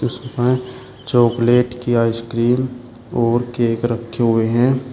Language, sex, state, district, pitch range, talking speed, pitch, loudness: Hindi, male, Uttar Pradesh, Shamli, 115-125 Hz, 120 wpm, 120 Hz, -18 LUFS